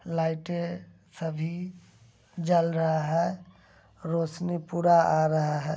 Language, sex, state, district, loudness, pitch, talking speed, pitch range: Angika, male, Bihar, Begusarai, -27 LUFS, 160 Hz, 125 wpm, 155-170 Hz